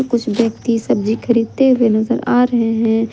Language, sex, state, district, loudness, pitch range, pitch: Hindi, female, Jharkhand, Ranchi, -15 LUFS, 225-240 Hz, 230 Hz